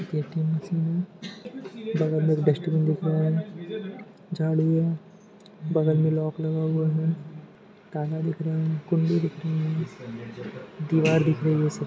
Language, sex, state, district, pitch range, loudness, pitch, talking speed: Hindi, male, Jharkhand, Sahebganj, 155-170 Hz, -25 LUFS, 160 Hz, 145 wpm